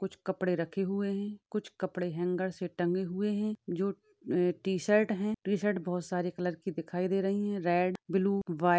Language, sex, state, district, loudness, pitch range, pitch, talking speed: Hindi, female, Maharashtra, Chandrapur, -32 LUFS, 180-200 Hz, 190 Hz, 190 wpm